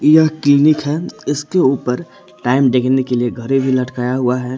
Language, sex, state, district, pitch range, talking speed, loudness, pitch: Hindi, male, Jharkhand, Palamu, 125-145 Hz, 185 wpm, -16 LUFS, 130 Hz